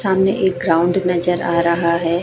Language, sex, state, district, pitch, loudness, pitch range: Hindi, female, Chhattisgarh, Raipur, 175 Hz, -17 LUFS, 170-185 Hz